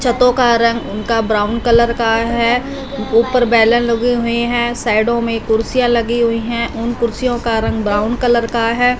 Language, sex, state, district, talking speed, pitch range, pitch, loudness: Hindi, female, Punjab, Fazilka, 180 wpm, 230-240 Hz, 235 Hz, -15 LUFS